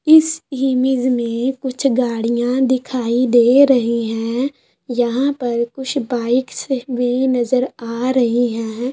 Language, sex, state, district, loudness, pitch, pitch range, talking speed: Hindi, female, West Bengal, Purulia, -17 LUFS, 250 Hz, 240-265 Hz, 120 wpm